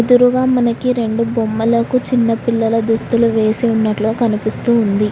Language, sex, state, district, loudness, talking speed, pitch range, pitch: Telugu, female, Telangana, Hyderabad, -15 LUFS, 130 wpm, 220-240 Hz, 230 Hz